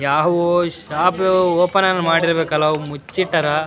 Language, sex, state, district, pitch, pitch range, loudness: Kannada, male, Karnataka, Raichur, 170 Hz, 155-180 Hz, -17 LUFS